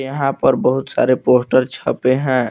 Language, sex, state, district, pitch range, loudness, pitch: Hindi, male, Jharkhand, Palamu, 125-135 Hz, -16 LUFS, 130 Hz